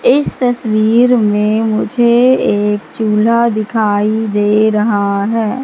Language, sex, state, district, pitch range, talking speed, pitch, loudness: Hindi, female, Madhya Pradesh, Katni, 210-235 Hz, 105 wpm, 215 Hz, -13 LUFS